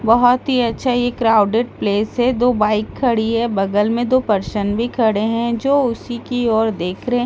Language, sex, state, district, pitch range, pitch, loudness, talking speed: Hindi, female, Delhi, New Delhi, 215-245 Hz, 235 Hz, -17 LUFS, 225 wpm